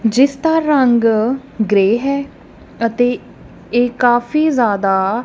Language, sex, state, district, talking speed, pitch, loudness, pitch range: Punjabi, female, Punjab, Kapurthala, 105 wpm, 245 Hz, -15 LUFS, 225-270 Hz